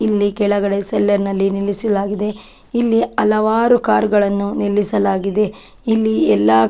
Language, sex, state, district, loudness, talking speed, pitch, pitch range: Kannada, female, Karnataka, Chamarajanagar, -16 LUFS, 115 wpm, 205 Hz, 200-215 Hz